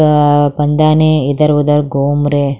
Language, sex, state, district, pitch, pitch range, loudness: Hindi, female, Haryana, Charkhi Dadri, 145 Hz, 145-150 Hz, -12 LUFS